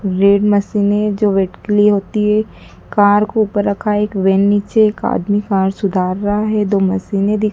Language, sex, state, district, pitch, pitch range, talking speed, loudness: Hindi, female, Madhya Pradesh, Dhar, 205 Hz, 195-210 Hz, 200 wpm, -15 LUFS